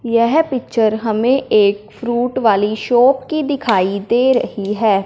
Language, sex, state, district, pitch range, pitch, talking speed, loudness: Hindi, male, Punjab, Fazilka, 210-255 Hz, 235 Hz, 140 wpm, -16 LUFS